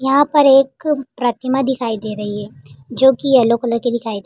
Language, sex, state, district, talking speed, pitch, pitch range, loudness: Hindi, female, Uttar Pradesh, Jalaun, 210 wpm, 245 Hz, 220-270 Hz, -16 LUFS